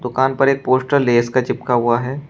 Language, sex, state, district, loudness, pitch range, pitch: Hindi, male, Uttar Pradesh, Shamli, -17 LUFS, 125-135 Hz, 130 Hz